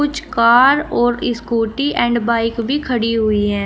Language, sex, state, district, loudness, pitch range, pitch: Hindi, female, Uttar Pradesh, Shamli, -16 LUFS, 230-270 Hz, 235 Hz